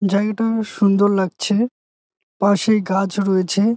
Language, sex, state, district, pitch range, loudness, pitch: Bengali, male, West Bengal, Jalpaiguri, 195-220 Hz, -18 LUFS, 200 Hz